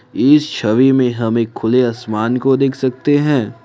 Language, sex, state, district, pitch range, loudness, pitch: Hindi, male, Assam, Kamrup Metropolitan, 115-135 Hz, -15 LUFS, 125 Hz